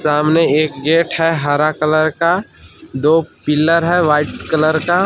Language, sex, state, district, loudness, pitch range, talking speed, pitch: Hindi, male, Jharkhand, Palamu, -15 LUFS, 150-165 Hz, 155 wpm, 155 Hz